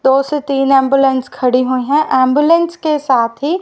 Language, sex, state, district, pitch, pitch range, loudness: Hindi, female, Haryana, Rohtak, 270 Hz, 255-295 Hz, -13 LUFS